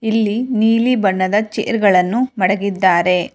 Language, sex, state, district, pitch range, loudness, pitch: Kannada, female, Karnataka, Bangalore, 185-225 Hz, -15 LUFS, 210 Hz